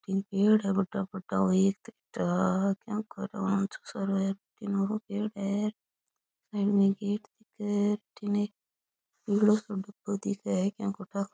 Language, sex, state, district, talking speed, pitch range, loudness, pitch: Rajasthani, female, Rajasthan, Churu, 65 wpm, 195-210 Hz, -30 LUFS, 200 Hz